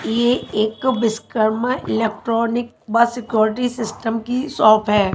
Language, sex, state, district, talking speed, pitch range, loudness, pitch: Hindi, female, Haryana, Charkhi Dadri, 115 wpm, 220-245 Hz, -19 LUFS, 230 Hz